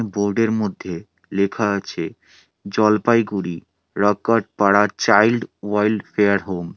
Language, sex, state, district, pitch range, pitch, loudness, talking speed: Bengali, male, West Bengal, Alipurduar, 100-110 Hz, 100 Hz, -19 LUFS, 105 wpm